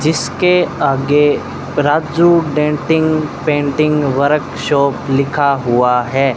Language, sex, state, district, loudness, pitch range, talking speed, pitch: Hindi, male, Rajasthan, Bikaner, -14 LUFS, 135-155 Hz, 85 wpm, 145 Hz